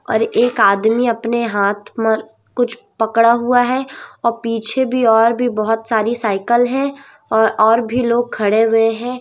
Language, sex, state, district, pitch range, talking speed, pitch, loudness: Hindi, female, Madhya Pradesh, Umaria, 220-245 Hz, 170 wpm, 230 Hz, -16 LUFS